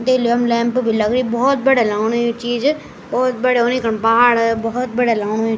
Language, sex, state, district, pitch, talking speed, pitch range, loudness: Garhwali, male, Uttarakhand, Tehri Garhwal, 240 Hz, 205 wpm, 230-250 Hz, -16 LUFS